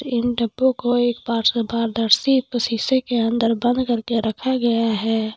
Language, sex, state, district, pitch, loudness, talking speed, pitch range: Hindi, female, Bihar, Madhepura, 235 Hz, -20 LUFS, 145 wpm, 230-245 Hz